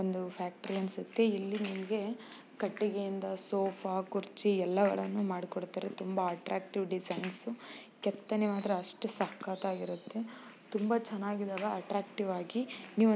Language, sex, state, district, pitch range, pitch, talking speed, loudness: Kannada, female, Karnataka, Chamarajanagar, 190-215 Hz, 200 Hz, 105 wpm, -35 LUFS